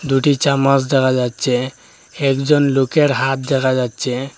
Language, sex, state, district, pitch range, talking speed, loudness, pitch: Bengali, male, Assam, Hailakandi, 130-140 Hz, 135 wpm, -16 LUFS, 135 Hz